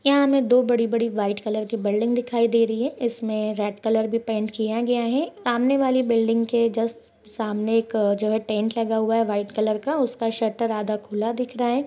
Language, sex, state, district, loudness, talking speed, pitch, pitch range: Hindi, female, Chhattisgarh, Bastar, -23 LUFS, 225 wpm, 230 Hz, 215-240 Hz